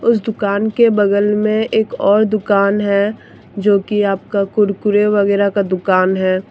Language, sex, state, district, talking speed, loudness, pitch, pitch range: Hindi, female, Jharkhand, Deoghar, 145 wpm, -15 LUFS, 205 Hz, 200-215 Hz